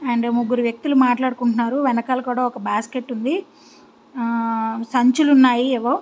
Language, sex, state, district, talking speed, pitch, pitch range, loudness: Telugu, female, Andhra Pradesh, Visakhapatnam, 120 wpm, 245 Hz, 235-255 Hz, -19 LUFS